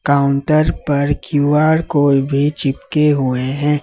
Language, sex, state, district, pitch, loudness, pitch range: Hindi, male, Jharkhand, Ranchi, 145 Hz, -16 LUFS, 140-150 Hz